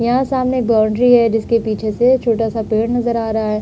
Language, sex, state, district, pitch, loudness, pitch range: Hindi, female, Uttar Pradesh, Budaun, 230 Hz, -15 LUFS, 220-245 Hz